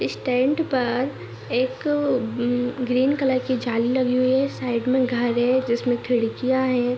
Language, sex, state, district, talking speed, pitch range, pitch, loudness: Hindi, female, Jharkhand, Jamtara, 155 wpm, 245-260 Hz, 250 Hz, -22 LUFS